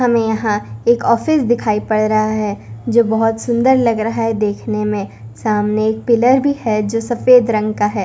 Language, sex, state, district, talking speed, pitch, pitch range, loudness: Hindi, female, Punjab, Kapurthala, 195 wpm, 220 Hz, 210-235 Hz, -16 LUFS